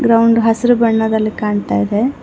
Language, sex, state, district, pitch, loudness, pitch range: Kannada, female, Karnataka, Bangalore, 225 Hz, -14 LUFS, 210-230 Hz